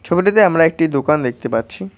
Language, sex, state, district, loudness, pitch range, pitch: Bengali, male, West Bengal, Cooch Behar, -15 LUFS, 120-170 Hz, 150 Hz